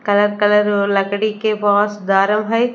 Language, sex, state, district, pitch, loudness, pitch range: Hindi, female, Chandigarh, Chandigarh, 205 Hz, -16 LUFS, 200-210 Hz